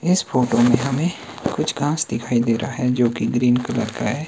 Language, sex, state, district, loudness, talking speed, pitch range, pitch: Hindi, male, Himachal Pradesh, Shimla, -20 LUFS, 210 wpm, 120-155 Hz, 125 Hz